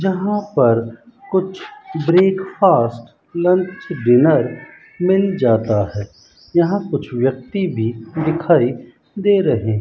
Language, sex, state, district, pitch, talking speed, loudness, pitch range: Hindi, male, Rajasthan, Bikaner, 170 Hz, 100 wpm, -17 LUFS, 120-190 Hz